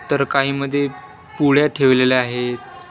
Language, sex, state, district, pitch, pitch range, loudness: Marathi, male, Maharashtra, Washim, 135 Hz, 130-140 Hz, -18 LUFS